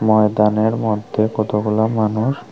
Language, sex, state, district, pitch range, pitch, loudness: Bengali, male, Tripura, Unakoti, 105-110 Hz, 110 Hz, -18 LUFS